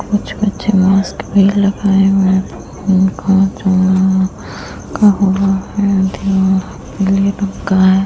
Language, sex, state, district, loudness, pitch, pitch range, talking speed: Hindi, female, Uttar Pradesh, Muzaffarnagar, -13 LUFS, 195 Hz, 190-195 Hz, 60 wpm